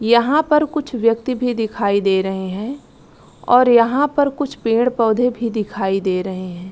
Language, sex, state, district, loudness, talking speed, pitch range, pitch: Hindi, female, Chhattisgarh, Korba, -17 LUFS, 170 wpm, 200-255 Hz, 235 Hz